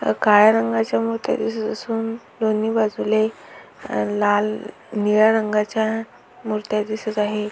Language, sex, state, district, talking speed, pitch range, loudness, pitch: Marathi, female, Maharashtra, Aurangabad, 110 wpm, 210-220 Hz, -20 LUFS, 215 Hz